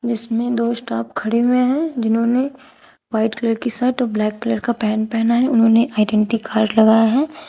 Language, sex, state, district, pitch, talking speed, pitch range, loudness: Hindi, female, Uttar Pradesh, Shamli, 230 Hz, 185 wpm, 220-245 Hz, -18 LUFS